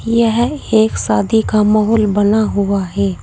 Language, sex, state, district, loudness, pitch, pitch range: Hindi, female, Uttar Pradesh, Saharanpur, -14 LUFS, 210 Hz, 195-225 Hz